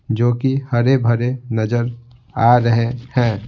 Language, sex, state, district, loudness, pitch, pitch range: Hindi, male, Bihar, Patna, -17 LUFS, 120 Hz, 115-125 Hz